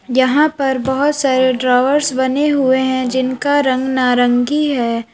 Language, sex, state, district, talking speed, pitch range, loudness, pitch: Hindi, female, Uttar Pradesh, Lalitpur, 140 wpm, 255-280 Hz, -15 LUFS, 260 Hz